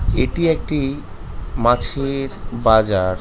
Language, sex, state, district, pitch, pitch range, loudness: Bengali, male, West Bengal, North 24 Parganas, 120 Hz, 105-140 Hz, -19 LUFS